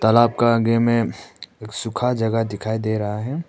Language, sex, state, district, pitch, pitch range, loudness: Hindi, male, Arunachal Pradesh, Papum Pare, 115 Hz, 110-120 Hz, -20 LUFS